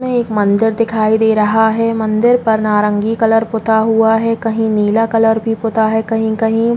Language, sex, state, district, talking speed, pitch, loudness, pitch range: Hindi, female, Uttar Pradesh, Jalaun, 195 wpm, 225 Hz, -14 LUFS, 220-225 Hz